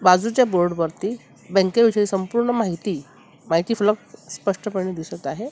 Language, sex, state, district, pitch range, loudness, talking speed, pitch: Marathi, female, Maharashtra, Mumbai Suburban, 175-230 Hz, -22 LUFS, 130 wpm, 195 Hz